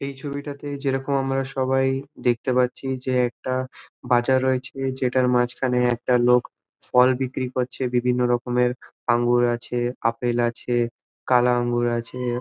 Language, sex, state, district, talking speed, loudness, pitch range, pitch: Bengali, male, West Bengal, Malda, 135 wpm, -23 LUFS, 120-130 Hz, 125 Hz